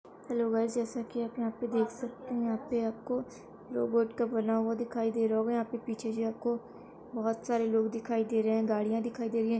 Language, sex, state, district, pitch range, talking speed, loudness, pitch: Hindi, female, Uttar Pradesh, Varanasi, 225-235 Hz, 225 wpm, -32 LUFS, 230 Hz